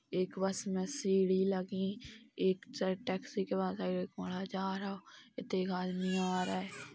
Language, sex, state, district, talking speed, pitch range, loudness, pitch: Bundeli, female, Uttar Pradesh, Hamirpur, 155 wpm, 185-195 Hz, -36 LUFS, 190 Hz